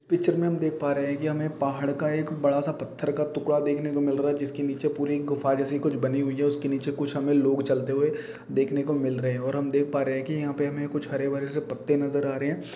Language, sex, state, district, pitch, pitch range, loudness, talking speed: Hindi, male, Jharkhand, Jamtara, 145 Hz, 140-150 Hz, -27 LUFS, 285 wpm